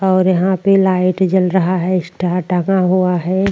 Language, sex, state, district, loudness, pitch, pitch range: Hindi, female, Uttarakhand, Tehri Garhwal, -15 LUFS, 185 Hz, 180-190 Hz